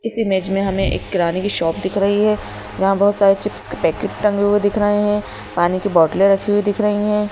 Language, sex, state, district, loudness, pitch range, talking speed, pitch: Hindi, male, Madhya Pradesh, Bhopal, -17 LUFS, 195-210 Hz, 245 wpm, 200 Hz